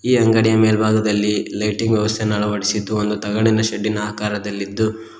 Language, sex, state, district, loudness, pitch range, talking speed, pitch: Kannada, male, Karnataka, Koppal, -18 LUFS, 105-110 Hz, 125 wpm, 105 Hz